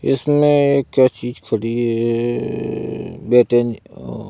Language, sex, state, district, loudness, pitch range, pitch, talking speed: Hindi, male, Madhya Pradesh, Bhopal, -17 LUFS, 115-140 Hz, 120 Hz, 125 wpm